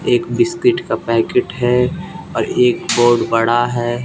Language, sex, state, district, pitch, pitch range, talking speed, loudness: Hindi, male, Bihar, West Champaran, 120 Hz, 120-125 Hz, 150 wpm, -16 LUFS